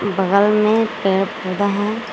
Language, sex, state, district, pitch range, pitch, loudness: Hindi, female, Jharkhand, Garhwa, 195-215 Hz, 200 Hz, -17 LUFS